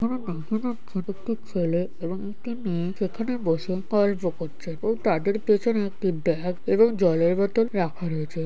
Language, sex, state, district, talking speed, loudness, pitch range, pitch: Bengali, male, West Bengal, Purulia, 155 wpm, -25 LUFS, 170-220 Hz, 190 Hz